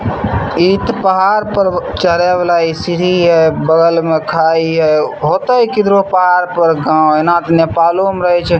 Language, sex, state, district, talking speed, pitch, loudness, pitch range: Maithili, male, Bihar, Samastipur, 165 wpm, 175 Hz, -12 LUFS, 165-190 Hz